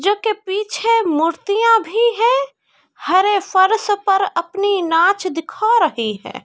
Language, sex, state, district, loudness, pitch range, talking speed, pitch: Hindi, female, Bihar, Kishanganj, -16 LUFS, 340-430 Hz, 130 wpm, 395 Hz